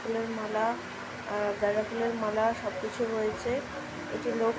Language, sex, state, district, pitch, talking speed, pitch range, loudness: Bengali, female, West Bengal, Jhargram, 220 Hz, 155 wpm, 215-230 Hz, -31 LUFS